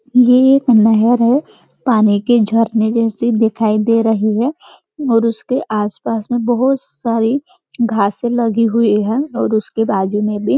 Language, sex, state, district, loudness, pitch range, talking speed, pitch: Hindi, female, Maharashtra, Nagpur, -15 LUFS, 220-245 Hz, 160 wpm, 230 Hz